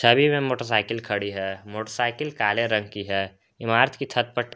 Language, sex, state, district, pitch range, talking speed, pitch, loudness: Hindi, male, Jharkhand, Garhwa, 105-120 Hz, 185 wpm, 115 Hz, -24 LUFS